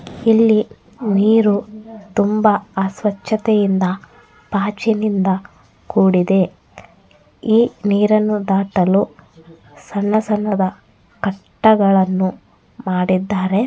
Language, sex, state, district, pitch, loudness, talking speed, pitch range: Kannada, female, Karnataka, Bellary, 205 Hz, -17 LUFS, 55 wpm, 190-215 Hz